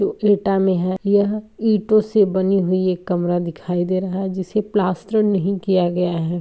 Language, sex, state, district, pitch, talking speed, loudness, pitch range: Hindi, female, Uttar Pradesh, Etah, 190 Hz, 185 wpm, -19 LUFS, 180-205 Hz